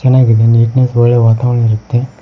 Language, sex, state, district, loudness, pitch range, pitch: Kannada, male, Karnataka, Koppal, -10 LUFS, 115-125 Hz, 120 Hz